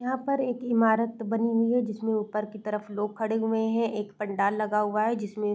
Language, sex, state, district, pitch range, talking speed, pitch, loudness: Hindi, female, Uttar Pradesh, Varanasi, 210-230 Hz, 235 wpm, 220 Hz, -27 LUFS